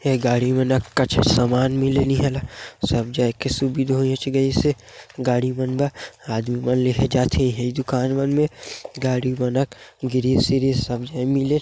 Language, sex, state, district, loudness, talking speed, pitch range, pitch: Chhattisgarhi, male, Chhattisgarh, Sarguja, -21 LUFS, 160 wpm, 125-135 Hz, 130 Hz